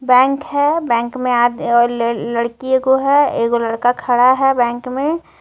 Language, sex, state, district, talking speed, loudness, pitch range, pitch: Hindi, female, Jharkhand, Ranchi, 135 wpm, -15 LUFS, 235-270 Hz, 250 Hz